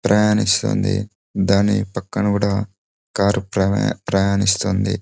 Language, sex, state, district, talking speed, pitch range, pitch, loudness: Telugu, male, Andhra Pradesh, Anantapur, 70 wpm, 95-105 Hz, 100 Hz, -19 LUFS